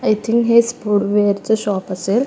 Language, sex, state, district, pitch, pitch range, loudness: Marathi, female, Maharashtra, Solapur, 210 Hz, 205-235 Hz, -17 LUFS